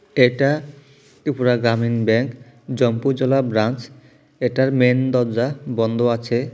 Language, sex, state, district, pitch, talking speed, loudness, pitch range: Bengali, male, Tripura, South Tripura, 125 Hz, 100 wpm, -19 LUFS, 120-135 Hz